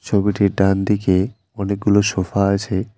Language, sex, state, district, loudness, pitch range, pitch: Bengali, male, West Bengal, Alipurduar, -18 LUFS, 95-105 Hz, 100 Hz